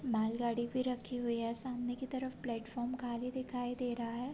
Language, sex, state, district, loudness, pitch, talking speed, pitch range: Hindi, female, Maharashtra, Aurangabad, -34 LUFS, 245 Hz, 205 wpm, 235-255 Hz